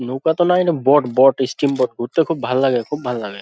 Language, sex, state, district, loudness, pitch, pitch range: Bengali, male, West Bengal, Dakshin Dinajpur, -17 LUFS, 135 Hz, 125-155 Hz